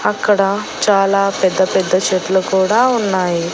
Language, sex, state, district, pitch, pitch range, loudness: Telugu, female, Andhra Pradesh, Annamaya, 190 Hz, 185-200 Hz, -15 LUFS